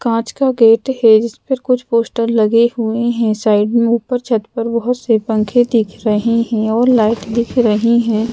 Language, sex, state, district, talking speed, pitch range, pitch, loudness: Hindi, female, Madhya Pradesh, Bhopal, 195 wpm, 220-240 Hz, 230 Hz, -14 LUFS